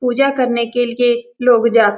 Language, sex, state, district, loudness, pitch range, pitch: Hindi, female, Bihar, Lakhisarai, -15 LUFS, 235-245 Hz, 240 Hz